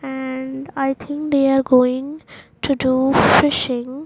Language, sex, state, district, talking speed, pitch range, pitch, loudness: English, female, Maharashtra, Mumbai Suburban, 135 wpm, 260-280 Hz, 270 Hz, -18 LUFS